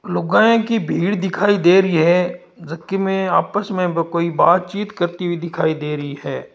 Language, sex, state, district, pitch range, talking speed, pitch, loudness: Marwari, male, Rajasthan, Nagaur, 170-195 Hz, 185 wpm, 180 Hz, -18 LUFS